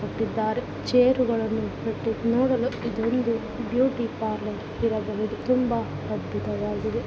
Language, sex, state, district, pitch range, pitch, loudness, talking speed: Kannada, female, Karnataka, Chamarajanagar, 215-245 Hz, 230 Hz, -26 LUFS, 95 wpm